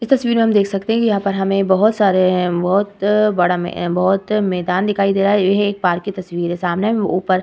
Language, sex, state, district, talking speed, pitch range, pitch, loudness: Hindi, female, Bihar, Vaishali, 265 wpm, 180-205 Hz, 195 Hz, -16 LUFS